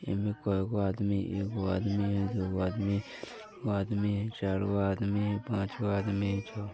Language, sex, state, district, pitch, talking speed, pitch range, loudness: Maithili, male, Bihar, Vaishali, 100 Hz, 225 wpm, 100-105 Hz, -32 LUFS